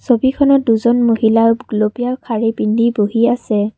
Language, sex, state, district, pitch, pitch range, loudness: Assamese, female, Assam, Kamrup Metropolitan, 230 Hz, 220-245 Hz, -15 LUFS